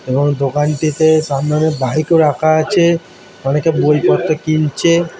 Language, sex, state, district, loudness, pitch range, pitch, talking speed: Bengali, male, West Bengal, Dakshin Dinajpur, -14 LUFS, 145-160 Hz, 155 Hz, 150 wpm